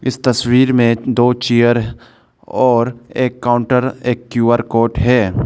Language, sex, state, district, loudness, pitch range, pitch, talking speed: Hindi, male, Arunachal Pradesh, Lower Dibang Valley, -14 LUFS, 120-125 Hz, 120 Hz, 130 wpm